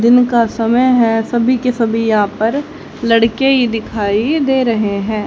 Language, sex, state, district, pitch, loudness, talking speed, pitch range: Hindi, female, Haryana, Jhajjar, 230 Hz, -14 LUFS, 170 wpm, 225-250 Hz